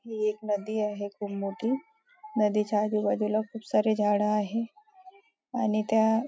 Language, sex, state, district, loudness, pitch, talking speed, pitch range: Marathi, female, Maharashtra, Nagpur, -28 LUFS, 215 Hz, 145 wpm, 210-235 Hz